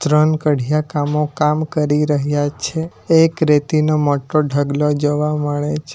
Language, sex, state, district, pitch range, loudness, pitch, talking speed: Gujarati, male, Gujarat, Valsad, 145-155 Hz, -17 LUFS, 150 Hz, 150 wpm